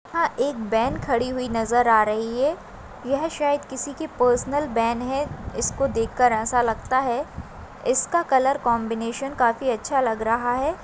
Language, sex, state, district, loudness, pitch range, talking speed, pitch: Hindi, female, Maharashtra, Aurangabad, -23 LUFS, 230-280 Hz, 160 wpm, 250 Hz